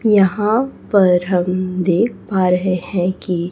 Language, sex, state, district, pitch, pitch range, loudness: Hindi, female, Chhattisgarh, Raipur, 185 Hz, 180-205 Hz, -17 LUFS